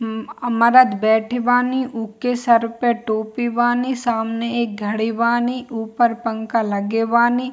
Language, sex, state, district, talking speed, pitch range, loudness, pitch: Hindi, female, Bihar, Kishanganj, 135 wpm, 225-245 Hz, -19 LUFS, 235 Hz